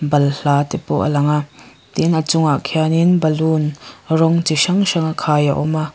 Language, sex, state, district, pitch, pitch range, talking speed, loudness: Mizo, female, Mizoram, Aizawl, 155 Hz, 150-160 Hz, 200 wpm, -17 LUFS